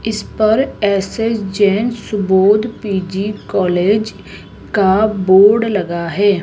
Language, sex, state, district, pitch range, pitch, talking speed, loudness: Hindi, female, Rajasthan, Jaipur, 190-215 Hz, 205 Hz, 105 wpm, -15 LUFS